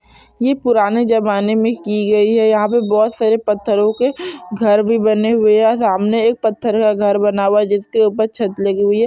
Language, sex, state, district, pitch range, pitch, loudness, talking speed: Hindi, female, Chhattisgarh, Bilaspur, 210-225 Hz, 215 Hz, -15 LUFS, 210 wpm